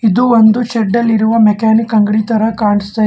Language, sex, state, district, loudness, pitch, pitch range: Kannada, male, Karnataka, Bangalore, -11 LUFS, 220 Hz, 215-230 Hz